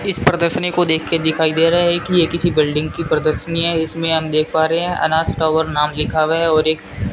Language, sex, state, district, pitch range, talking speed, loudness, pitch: Hindi, male, Rajasthan, Bikaner, 155-170 Hz, 255 wpm, -16 LUFS, 160 Hz